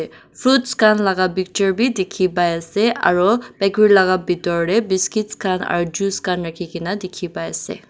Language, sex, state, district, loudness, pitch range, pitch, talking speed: Nagamese, female, Nagaland, Dimapur, -18 LUFS, 180-210 Hz, 190 Hz, 175 wpm